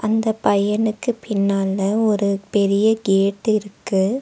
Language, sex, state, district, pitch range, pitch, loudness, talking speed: Tamil, female, Tamil Nadu, Nilgiris, 195-220 Hz, 205 Hz, -19 LUFS, 100 wpm